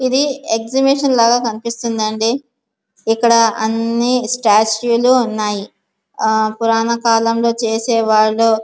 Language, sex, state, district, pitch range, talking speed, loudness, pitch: Telugu, female, Andhra Pradesh, Visakhapatnam, 220-240 Hz, 90 wpm, -15 LUFS, 230 Hz